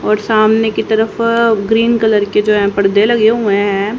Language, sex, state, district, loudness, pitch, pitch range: Hindi, female, Haryana, Rohtak, -12 LUFS, 215 Hz, 205-225 Hz